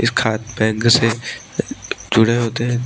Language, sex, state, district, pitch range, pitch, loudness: Hindi, male, Maharashtra, Washim, 110-120 Hz, 115 Hz, -18 LUFS